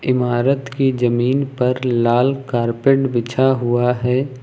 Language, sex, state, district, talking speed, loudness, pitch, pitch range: Hindi, male, Uttar Pradesh, Lucknow, 120 wpm, -17 LUFS, 125 Hz, 120-135 Hz